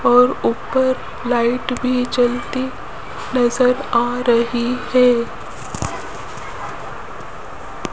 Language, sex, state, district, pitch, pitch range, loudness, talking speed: Hindi, female, Rajasthan, Jaipur, 245 Hz, 240-255 Hz, -18 LUFS, 70 wpm